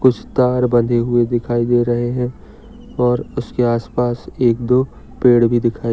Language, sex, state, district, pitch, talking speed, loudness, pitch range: Hindi, male, Maharashtra, Dhule, 120 Hz, 170 wpm, -17 LUFS, 120-125 Hz